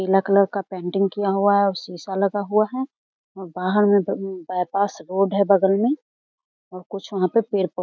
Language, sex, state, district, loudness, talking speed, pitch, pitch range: Hindi, female, Jharkhand, Jamtara, -21 LUFS, 205 wpm, 195 Hz, 190-200 Hz